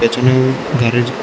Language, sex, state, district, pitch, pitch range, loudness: Bengali, male, Tripura, West Tripura, 125 Hz, 120-130 Hz, -14 LUFS